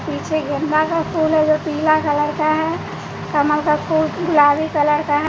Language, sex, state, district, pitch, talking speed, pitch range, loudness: Hindi, female, Bihar, West Champaran, 310 Hz, 195 wpm, 295-315 Hz, -17 LUFS